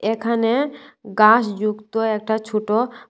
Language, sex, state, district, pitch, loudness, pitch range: Bengali, female, Tripura, West Tripura, 220 Hz, -19 LUFS, 215-235 Hz